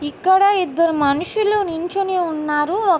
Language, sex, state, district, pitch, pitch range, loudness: Telugu, female, Andhra Pradesh, Guntur, 355 Hz, 305-390 Hz, -18 LUFS